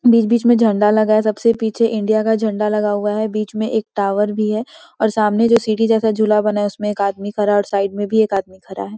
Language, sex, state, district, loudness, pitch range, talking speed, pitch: Hindi, female, Bihar, Muzaffarpur, -17 LUFS, 210-220 Hz, 275 wpm, 215 Hz